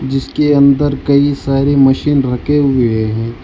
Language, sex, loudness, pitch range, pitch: Hindi, male, -12 LUFS, 125-145 Hz, 135 Hz